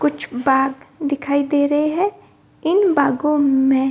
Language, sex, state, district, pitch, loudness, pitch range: Hindi, female, Bihar, Gopalganj, 285 Hz, -18 LUFS, 265-300 Hz